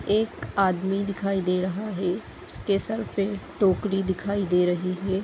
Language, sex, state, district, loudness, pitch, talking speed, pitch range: Hindi, female, Uttar Pradesh, Deoria, -26 LUFS, 195 Hz, 160 wpm, 185-200 Hz